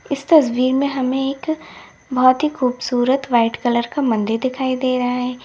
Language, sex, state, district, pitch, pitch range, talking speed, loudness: Hindi, female, Uttar Pradesh, Lalitpur, 255 Hz, 245-270 Hz, 175 wpm, -18 LUFS